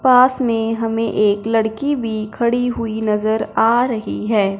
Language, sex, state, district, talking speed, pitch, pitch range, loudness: Hindi, male, Punjab, Fazilka, 155 wpm, 225 Hz, 215-240 Hz, -18 LUFS